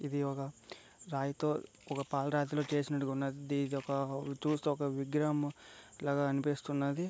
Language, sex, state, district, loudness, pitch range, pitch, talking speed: Telugu, male, Andhra Pradesh, Guntur, -36 LUFS, 140-145 Hz, 140 Hz, 125 wpm